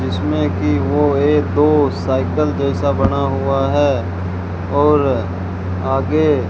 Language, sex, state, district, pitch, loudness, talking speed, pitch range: Hindi, male, Rajasthan, Bikaner, 95 Hz, -17 LUFS, 120 wpm, 90-145 Hz